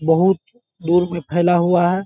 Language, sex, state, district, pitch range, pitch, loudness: Hindi, male, Bihar, Bhagalpur, 170-185 Hz, 175 Hz, -17 LUFS